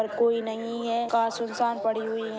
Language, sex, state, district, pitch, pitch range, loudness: Hindi, female, Bihar, Saran, 230 Hz, 225-235 Hz, -27 LUFS